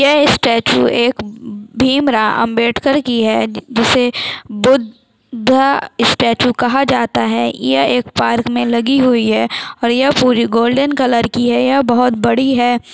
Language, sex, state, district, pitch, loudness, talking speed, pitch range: Hindi, female, Chhattisgarh, Sukma, 240 Hz, -13 LUFS, 150 wpm, 230-260 Hz